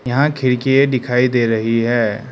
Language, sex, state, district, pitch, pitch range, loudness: Hindi, male, Arunachal Pradesh, Lower Dibang Valley, 125 Hz, 115-130 Hz, -16 LUFS